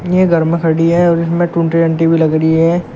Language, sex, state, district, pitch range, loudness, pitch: Hindi, male, Uttar Pradesh, Shamli, 165-170 Hz, -12 LUFS, 165 Hz